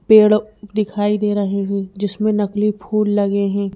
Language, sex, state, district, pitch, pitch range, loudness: Hindi, female, Madhya Pradesh, Bhopal, 205 Hz, 200-210 Hz, -18 LUFS